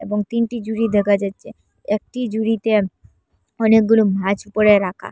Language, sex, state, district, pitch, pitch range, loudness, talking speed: Bengali, female, Assam, Hailakandi, 210 Hz, 200-225 Hz, -18 LUFS, 130 wpm